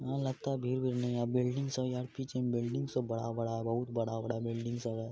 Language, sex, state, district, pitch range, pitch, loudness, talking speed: Hindi, male, Bihar, Araria, 115-130 Hz, 125 Hz, -35 LUFS, 245 wpm